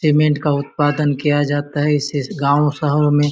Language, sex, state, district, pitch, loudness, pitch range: Hindi, male, Chhattisgarh, Bastar, 145 Hz, -17 LUFS, 145-150 Hz